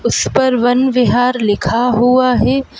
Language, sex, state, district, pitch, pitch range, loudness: Hindi, male, Madhya Pradesh, Bhopal, 250 Hz, 240-255 Hz, -13 LUFS